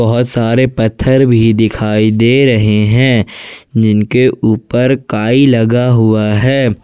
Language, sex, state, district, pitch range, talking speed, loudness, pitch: Hindi, male, Jharkhand, Ranchi, 110-125 Hz, 125 wpm, -11 LUFS, 115 Hz